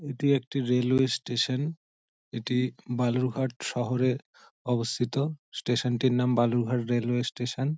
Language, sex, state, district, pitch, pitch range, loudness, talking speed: Bengali, male, West Bengal, Dakshin Dinajpur, 125 Hz, 120-130 Hz, -28 LUFS, 125 wpm